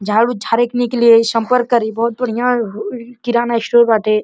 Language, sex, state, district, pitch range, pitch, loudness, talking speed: Bhojpuri, male, Uttar Pradesh, Deoria, 225-240 Hz, 235 Hz, -15 LUFS, 155 wpm